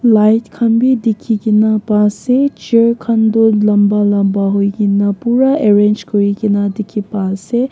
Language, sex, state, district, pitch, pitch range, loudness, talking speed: Nagamese, female, Nagaland, Kohima, 215 Hz, 205-230 Hz, -13 LUFS, 165 wpm